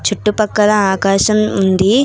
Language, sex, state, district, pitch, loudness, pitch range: Telugu, female, Telangana, Hyderabad, 210 Hz, -13 LUFS, 195-215 Hz